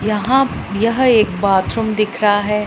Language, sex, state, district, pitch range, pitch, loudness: Hindi, male, Punjab, Pathankot, 205-230 Hz, 215 Hz, -16 LUFS